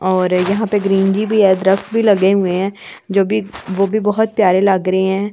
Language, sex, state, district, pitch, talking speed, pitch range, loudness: Hindi, female, Delhi, New Delhi, 195 Hz, 225 wpm, 190-210 Hz, -15 LUFS